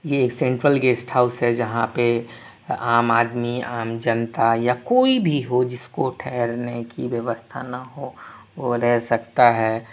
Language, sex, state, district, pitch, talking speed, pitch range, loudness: Hindi, male, Tripura, West Tripura, 120 Hz, 150 wpm, 115-125 Hz, -21 LUFS